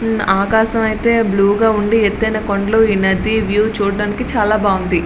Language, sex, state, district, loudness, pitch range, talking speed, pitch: Telugu, female, Andhra Pradesh, Srikakulam, -15 LUFS, 200-220 Hz, 140 wpm, 215 Hz